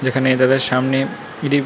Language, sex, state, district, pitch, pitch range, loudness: Bengali, male, West Bengal, North 24 Parganas, 130 Hz, 130-135 Hz, -17 LUFS